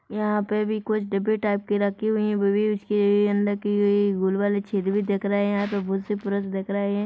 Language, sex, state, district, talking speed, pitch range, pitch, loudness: Hindi, female, Chhattisgarh, Rajnandgaon, 230 wpm, 200-210 Hz, 205 Hz, -24 LUFS